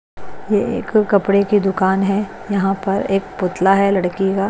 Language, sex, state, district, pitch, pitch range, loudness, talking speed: Hindi, female, Bihar, West Champaran, 195 Hz, 195-205 Hz, -17 LUFS, 175 wpm